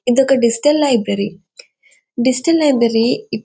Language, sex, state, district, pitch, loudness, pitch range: Telugu, female, Andhra Pradesh, Anantapur, 250 Hz, -15 LUFS, 230-295 Hz